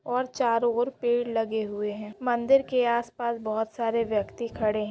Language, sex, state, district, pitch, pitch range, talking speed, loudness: Hindi, female, Jharkhand, Jamtara, 235 Hz, 220-245 Hz, 185 wpm, -27 LUFS